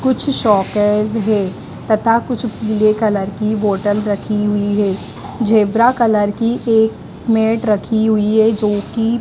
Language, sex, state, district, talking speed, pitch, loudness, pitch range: Hindi, female, Madhya Pradesh, Dhar, 150 wpm, 215 Hz, -15 LUFS, 205-225 Hz